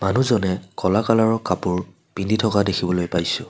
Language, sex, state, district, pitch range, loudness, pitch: Assamese, male, Assam, Kamrup Metropolitan, 90-110 Hz, -21 LUFS, 95 Hz